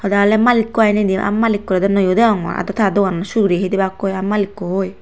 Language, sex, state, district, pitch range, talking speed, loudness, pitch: Chakma, female, Tripura, Unakoti, 190-210 Hz, 265 wpm, -16 LUFS, 200 Hz